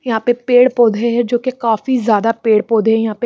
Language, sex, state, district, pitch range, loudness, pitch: Hindi, female, Haryana, Charkhi Dadri, 225-245 Hz, -14 LUFS, 235 Hz